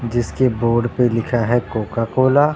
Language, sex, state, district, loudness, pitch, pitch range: Hindi, male, Punjab, Pathankot, -18 LUFS, 120 Hz, 115-130 Hz